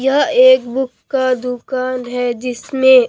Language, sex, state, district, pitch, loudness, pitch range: Hindi, female, Bihar, Katihar, 255 Hz, -15 LUFS, 250-260 Hz